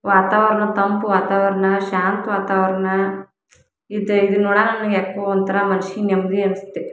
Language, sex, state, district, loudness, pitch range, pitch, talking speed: Kannada, female, Karnataka, Dharwad, -18 LUFS, 195-205 Hz, 195 Hz, 110 wpm